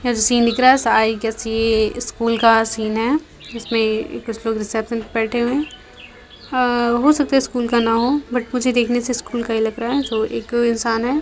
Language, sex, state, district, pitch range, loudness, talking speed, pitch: Hindi, female, Bihar, Begusarai, 225-250 Hz, -18 LUFS, 205 wpm, 235 Hz